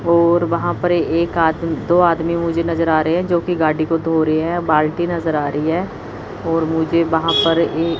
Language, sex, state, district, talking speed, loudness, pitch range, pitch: Hindi, female, Chandigarh, Chandigarh, 220 wpm, -17 LUFS, 160-170 Hz, 165 Hz